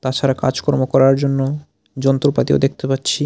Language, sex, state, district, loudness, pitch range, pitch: Bengali, male, Tripura, Unakoti, -17 LUFS, 130-140 Hz, 135 Hz